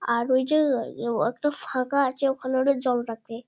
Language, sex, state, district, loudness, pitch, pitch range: Bengali, female, West Bengal, Kolkata, -25 LUFS, 260 Hz, 235-275 Hz